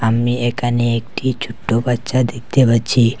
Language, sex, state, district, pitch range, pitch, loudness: Bengali, male, Assam, Hailakandi, 115-125 Hz, 120 Hz, -17 LUFS